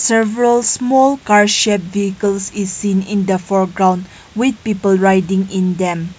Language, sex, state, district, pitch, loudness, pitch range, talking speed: English, female, Nagaland, Kohima, 200 Hz, -15 LUFS, 190-220 Hz, 145 wpm